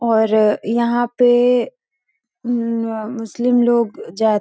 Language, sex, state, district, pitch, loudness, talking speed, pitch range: Hindi, female, Bihar, Sitamarhi, 235 Hz, -17 LUFS, 110 wpm, 225-245 Hz